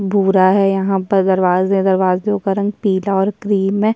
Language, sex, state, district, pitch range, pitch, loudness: Hindi, female, Uttarakhand, Tehri Garhwal, 190-200 Hz, 195 Hz, -15 LUFS